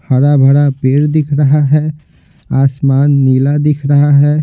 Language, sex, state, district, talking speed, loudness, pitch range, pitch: Hindi, male, Bihar, Patna, 150 wpm, -11 LUFS, 135-150 Hz, 145 Hz